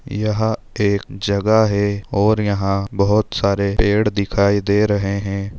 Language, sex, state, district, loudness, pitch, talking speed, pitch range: Hindi, male, Andhra Pradesh, Chittoor, -18 LUFS, 100 Hz, 140 wpm, 100-105 Hz